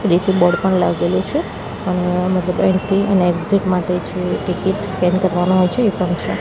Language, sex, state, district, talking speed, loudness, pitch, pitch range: Gujarati, female, Gujarat, Gandhinagar, 170 wpm, -17 LUFS, 180 Hz, 180-190 Hz